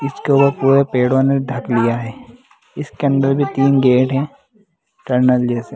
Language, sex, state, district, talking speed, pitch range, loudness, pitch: Hindi, male, Bihar, Jahanabad, 145 wpm, 125-140 Hz, -15 LUFS, 135 Hz